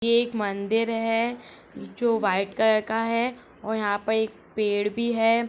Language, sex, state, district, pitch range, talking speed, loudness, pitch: Hindi, female, Uttarakhand, Tehri Garhwal, 210-230 Hz, 175 wpm, -25 LUFS, 225 Hz